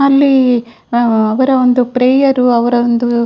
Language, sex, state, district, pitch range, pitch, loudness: Kannada, female, Karnataka, Dakshina Kannada, 235-260 Hz, 250 Hz, -12 LUFS